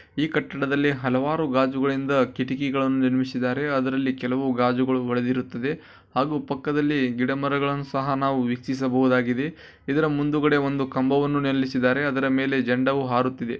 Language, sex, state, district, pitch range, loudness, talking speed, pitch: Kannada, male, Karnataka, Bijapur, 130-140 Hz, -24 LUFS, 110 wpm, 135 Hz